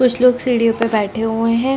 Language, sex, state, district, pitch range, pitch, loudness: Hindi, female, Chhattisgarh, Bastar, 225-250 Hz, 230 Hz, -16 LUFS